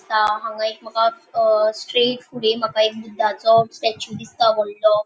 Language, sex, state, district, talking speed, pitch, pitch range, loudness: Konkani, female, Goa, North and South Goa, 155 wpm, 225 Hz, 220-320 Hz, -19 LUFS